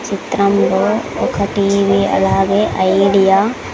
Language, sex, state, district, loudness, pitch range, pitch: Telugu, female, Andhra Pradesh, Sri Satya Sai, -14 LUFS, 195-200 Hz, 195 Hz